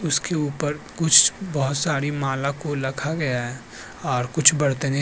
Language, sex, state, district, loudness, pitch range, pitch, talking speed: Hindi, male, Uttar Pradesh, Budaun, -21 LUFS, 135-155 Hz, 145 Hz, 165 wpm